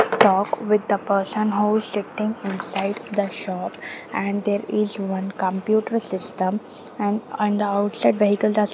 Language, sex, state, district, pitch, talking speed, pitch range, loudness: English, female, Maharashtra, Gondia, 205 Hz, 160 wpm, 195-215 Hz, -23 LUFS